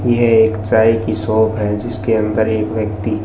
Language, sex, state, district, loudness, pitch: Hindi, male, Rajasthan, Bikaner, -15 LUFS, 110 Hz